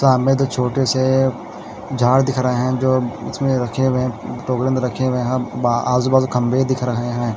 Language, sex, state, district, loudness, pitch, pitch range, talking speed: Hindi, male, Haryana, Charkhi Dadri, -18 LUFS, 130 Hz, 125-130 Hz, 170 wpm